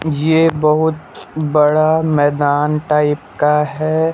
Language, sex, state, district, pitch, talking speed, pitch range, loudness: Hindi, male, Bihar, Patna, 155 Hz, 100 wpm, 150-160 Hz, -15 LUFS